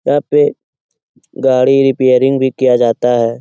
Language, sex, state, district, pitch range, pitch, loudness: Hindi, male, Bihar, Lakhisarai, 125-135 Hz, 130 Hz, -12 LUFS